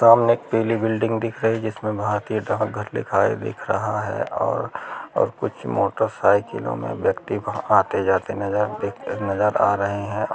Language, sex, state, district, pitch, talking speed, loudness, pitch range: Hindi, male, Chhattisgarh, Rajnandgaon, 110 Hz, 150 wpm, -22 LUFS, 105-115 Hz